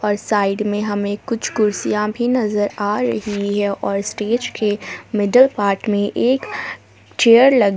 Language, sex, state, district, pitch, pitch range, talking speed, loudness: Hindi, female, Jharkhand, Palamu, 210 Hz, 205-235 Hz, 145 wpm, -18 LUFS